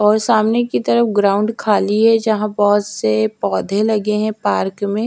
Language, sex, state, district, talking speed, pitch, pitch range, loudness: Hindi, female, Odisha, Malkangiri, 180 wpm, 210 Hz, 205-220 Hz, -16 LUFS